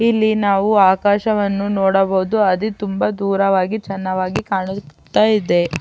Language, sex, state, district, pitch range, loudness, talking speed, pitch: Kannada, female, Karnataka, Chamarajanagar, 190-210 Hz, -17 LUFS, 105 wpm, 195 Hz